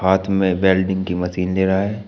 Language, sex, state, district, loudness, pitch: Hindi, male, Uttar Pradesh, Shamli, -18 LUFS, 95 Hz